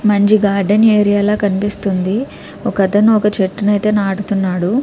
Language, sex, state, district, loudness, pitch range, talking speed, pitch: Telugu, female, Andhra Pradesh, Krishna, -14 LUFS, 195-210 Hz, 125 wpm, 205 Hz